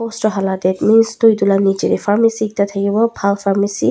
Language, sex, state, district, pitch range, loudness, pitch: Nagamese, female, Nagaland, Dimapur, 195-225 Hz, -15 LUFS, 205 Hz